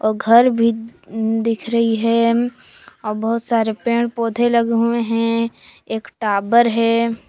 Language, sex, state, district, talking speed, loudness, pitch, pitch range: Hindi, female, Jharkhand, Palamu, 140 wpm, -18 LUFS, 230 Hz, 225-235 Hz